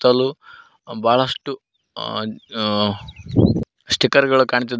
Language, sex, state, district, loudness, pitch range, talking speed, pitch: Kannada, male, Karnataka, Koppal, -19 LUFS, 110-130 Hz, 60 wpm, 125 Hz